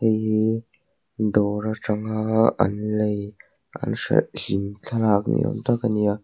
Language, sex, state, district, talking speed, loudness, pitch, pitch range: Mizo, male, Mizoram, Aizawl, 155 wpm, -23 LUFS, 110 Hz, 105-110 Hz